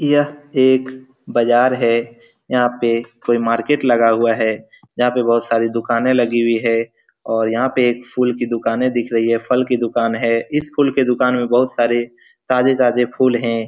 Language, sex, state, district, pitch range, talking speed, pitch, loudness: Hindi, male, Bihar, Araria, 115-130 Hz, 190 wpm, 120 Hz, -17 LUFS